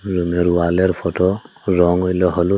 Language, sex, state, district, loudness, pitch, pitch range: Bengali, male, Assam, Hailakandi, -17 LUFS, 90 Hz, 85-95 Hz